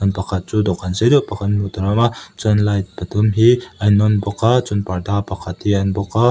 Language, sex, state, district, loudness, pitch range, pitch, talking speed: Mizo, male, Mizoram, Aizawl, -17 LUFS, 95-110 Hz, 100 Hz, 275 wpm